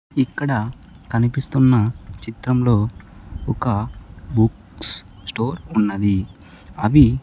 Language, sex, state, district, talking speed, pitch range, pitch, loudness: Telugu, male, Andhra Pradesh, Sri Satya Sai, 75 wpm, 100-125 Hz, 115 Hz, -20 LUFS